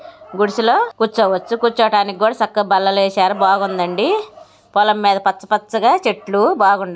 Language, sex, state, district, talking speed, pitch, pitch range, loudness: Telugu, female, Andhra Pradesh, Guntur, 110 wpm, 205 Hz, 195-225 Hz, -16 LUFS